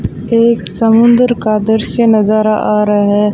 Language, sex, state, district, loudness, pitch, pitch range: Hindi, female, Rajasthan, Bikaner, -11 LUFS, 215 Hz, 210-230 Hz